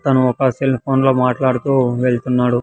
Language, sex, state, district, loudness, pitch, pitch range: Telugu, male, Andhra Pradesh, Sri Satya Sai, -16 LUFS, 130 Hz, 125-135 Hz